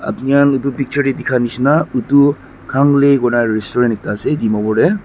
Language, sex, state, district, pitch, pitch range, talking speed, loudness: Nagamese, male, Nagaland, Dimapur, 135 Hz, 120-140 Hz, 180 wpm, -14 LUFS